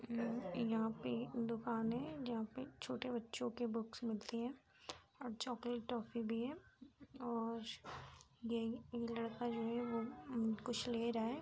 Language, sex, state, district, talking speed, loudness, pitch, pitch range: Hindi, female, Uttar Pradesh, Jyotiba Phule Nagar, 150 wpm, -43 LUFS, 235 Hz, 230-245 Hz